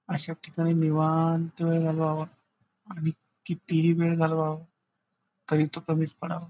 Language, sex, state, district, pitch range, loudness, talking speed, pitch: Marathi, male, Maharashtra, Pune, 155-165 Hz, -27 LUFS, 110 wpm, 160 Hz